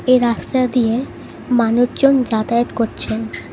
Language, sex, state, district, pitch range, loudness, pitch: Bengali, female, West Bengal, Cooch Behar, 220-250 Hz, -17 LUFS, 235 Hz